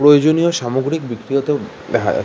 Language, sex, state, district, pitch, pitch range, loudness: Bengali, male, West Bengal, Kolkata, 145 Hz, 130-155 Hz, -17 LUFS